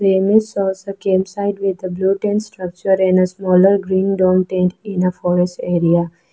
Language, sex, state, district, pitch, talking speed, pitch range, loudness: English, female, Arunachal Pradesh, Lower Dibang Valley, 190 Hz, 190 wpm, 180-195 Hz, -17 LUFS